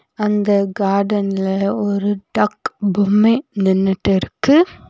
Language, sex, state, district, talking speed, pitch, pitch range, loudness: Tamil, female, Tamil Nadu, Nilgiris, 75 wpm, 200 Hz, 195-210 Hz, -17 LUFS